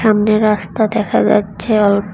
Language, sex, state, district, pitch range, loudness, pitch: Bengali, female, Tripura, West Tripura, 205-215 Hz, -14 LUFS, 210 Hz